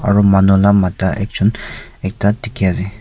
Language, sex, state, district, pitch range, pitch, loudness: Nagamese, male, Nagaland, Kohima, 95-100 Hz, 100 Hz, -15 LUFS